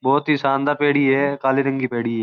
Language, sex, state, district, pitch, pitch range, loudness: Marwari, male, Rajasthan, Churu, 135 Hz, 135-145 Hz, -19 LUFS